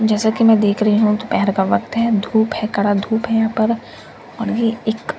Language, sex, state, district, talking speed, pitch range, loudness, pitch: Hindi, female, Bihar, Katihar, 240 wpm, 210-225 Hz, -17 LUFS, 220 Hz